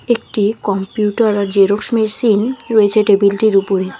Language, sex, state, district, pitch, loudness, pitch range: Bengali, female, West Bengal, Alipurduar, 210 Hz, -14 LUFS, 200-225 Hz